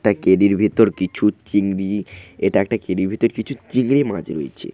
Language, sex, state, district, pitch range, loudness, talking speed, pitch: Bengali, male, West Bengal, Jhargram, 100-115 Hz, -19 LUFS, 165 wpm, 105 Hz